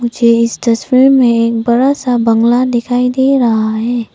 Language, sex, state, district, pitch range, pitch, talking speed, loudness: Hindi, female, Arunachal Pradesh, Papum Pare, 230-250 Hz, 240 Hz, 175 wpm, -11 LUFS